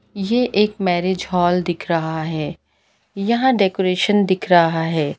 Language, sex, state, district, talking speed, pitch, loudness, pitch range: Hindi, female, Bihar, Gaya, 140 wpm, 185 Hz, -18 LUFS, 170-205 Hz